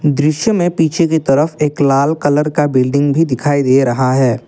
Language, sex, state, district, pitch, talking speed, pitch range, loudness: Hindi, male, Assam, Kamrup Metropolitan, 145 Hz, 200 wpm, 135-155 Hz, -13 LUFS